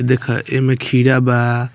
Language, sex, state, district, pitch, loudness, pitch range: Bhojpuri, male, Bihar, Muzaffarpur, 125 Hz, -15 LUFS, 120-130 Hz